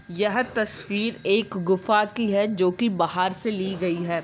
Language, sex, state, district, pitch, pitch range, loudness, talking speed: Hindi, female, Chhattisgarh, Bilaspur, 200 Hz, 185-215 Hz, -24 LUFS, 185 wpm